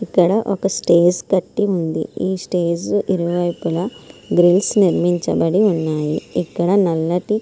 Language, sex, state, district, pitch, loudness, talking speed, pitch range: Telugu, male, Andhra Pradesh, Srikakulam, 175 Hz, -18 LUFS, 105 wpm, 170-195 Hz